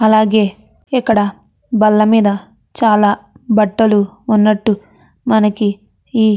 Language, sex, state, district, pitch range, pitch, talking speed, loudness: Telugu, female, Andhra Pradesh, Chittoor, 205-220 Hz, 215 Hz, 85 wpm, -14 LUFS